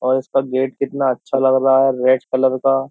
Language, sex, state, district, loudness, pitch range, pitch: Hindi, male, Uttar Pradesh, Jyotiba Phule Nagar, -17 LUFS, 130-135 Hz, 130 Hz